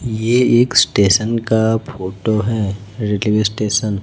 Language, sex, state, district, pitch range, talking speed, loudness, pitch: Hindi, male, Chhattisgarh, Raipur, 105-115 Hz, 135 wpm, -16 LUFS, 110 Hz